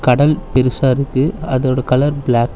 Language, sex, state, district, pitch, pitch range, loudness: Tamil, male, Tamil Nadu, Chennai, 130 Hz, 130-145 Hz, -15 LUFS